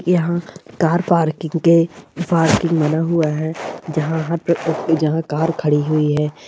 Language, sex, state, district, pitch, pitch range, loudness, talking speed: Hindi, female, Bihar, Purnia, 160 Hz, 155-170 Hz, -18 LUFS, 140 wpm